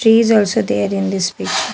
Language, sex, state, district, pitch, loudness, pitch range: English, female, Telangana, Hyderabad, 195 Hz, -16 LUFS, 190-225 Hz